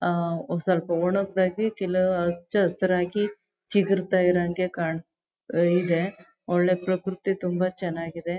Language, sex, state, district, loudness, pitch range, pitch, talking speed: Kannada, female, Karnataka, Chamarajanagar, -25 LUFS, 175-190 Hz, 180 Hz, 105 wpm